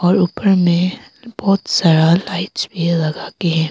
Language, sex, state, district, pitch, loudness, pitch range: Hindi, female, Arunachal Pradesh, Papum Pare, 180 Hz, -16 LUFS, 170-195 Hz